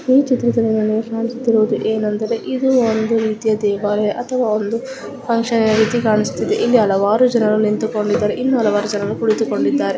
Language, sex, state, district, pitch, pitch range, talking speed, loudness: Kannada, female, Karnataka, Chamarajanagar, 220 Hz, 215-235 Hz, 125 wpm, -17 LUFS